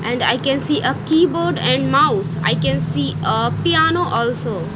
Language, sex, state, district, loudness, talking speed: English, female, Punjab, Kapurthala, -17 LUFS, 175 wpm